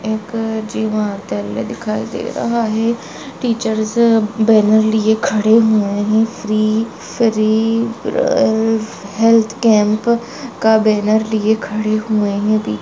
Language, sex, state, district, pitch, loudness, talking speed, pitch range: Hindi, female, Maharashtra, Solapur, 220 Hz, -16 LUFS, 105 wpm, 215-225 Hz